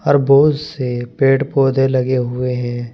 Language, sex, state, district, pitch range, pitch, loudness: Hindi, male, Uttar Pradesh, Saharanpur, 125-140 Hz, 135 Hz, -16 LUFS